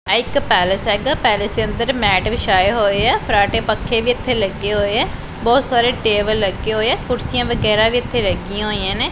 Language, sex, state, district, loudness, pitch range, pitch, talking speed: Punjabi, female, Punjab, Pathankot, -17 LUFS, 205-235 Hz, 215 Hz, 205 wpm